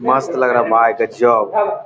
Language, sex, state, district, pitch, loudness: Hindi, male, Bihar, Jamui, 125 Hz, -15 LUFS